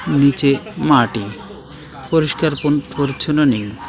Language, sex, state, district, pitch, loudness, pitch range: Bengali, male, West Bengal, Alipurduar, 140 Hz, -17 LUFS, 130-150 Hz